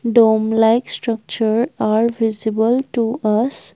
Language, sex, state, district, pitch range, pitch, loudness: English, female, Assam, Kamrup Metropolitan, 220-235 Hz, 225 Hz, -16 LUFS